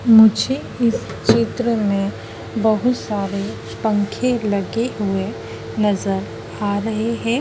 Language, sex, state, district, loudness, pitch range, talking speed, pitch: Hindi, female, Madhya Pradesh, Dhar, -20 LUFS, 200-235 Hz, 105 wpm, 215 Hz